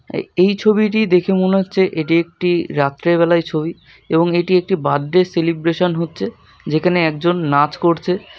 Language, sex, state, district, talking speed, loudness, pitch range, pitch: Bengali, male, West Bengal, North 24 Parganas, 155 wpm, -17 LUFS, 165-185 Hz, 175 Hz